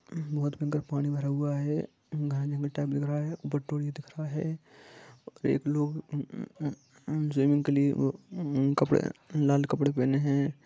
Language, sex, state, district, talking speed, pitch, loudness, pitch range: Hindi, male, Jharkhand, Sahebganj, 95 wpm, 145 Hz, -30 LUFS, 140-150 Hz